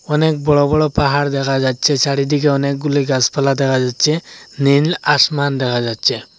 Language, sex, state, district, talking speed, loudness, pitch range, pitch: Bengali, male, Assam, Hailakandi, 140 wpm, -15 LUFS, 135-150 Hz, 140 Hz